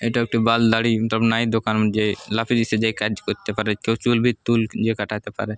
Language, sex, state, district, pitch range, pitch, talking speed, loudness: Bengali, male, Jharkhand, Jamtara, 110-115 Hz, 115 Hz, 170 wpm, -21 LUFS